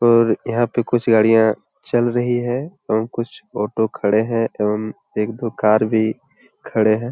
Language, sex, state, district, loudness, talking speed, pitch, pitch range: Hindi, male, Jharkhand, Jamtara, -19 LUFS, 170 wpm, 115 Hz, 110-120 Hz